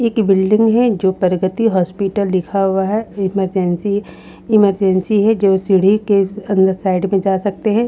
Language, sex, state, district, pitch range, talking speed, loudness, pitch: Hindi, female, Haryana, Rohtak, 190-210 Hz, 160 wpm, -15 LUFS, 195 Hz